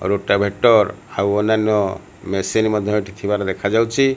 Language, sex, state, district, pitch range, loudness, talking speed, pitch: Odia, male, Odisha, Malkangiri, 100-110 Hz, -18 LUFS, 100 wpm, 105 Hz